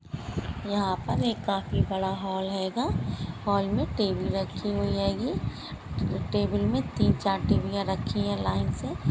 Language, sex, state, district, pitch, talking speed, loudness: Hindi, female, Bihar, Jahanabad, 140 Hz, 145 wpm, -28 LUFS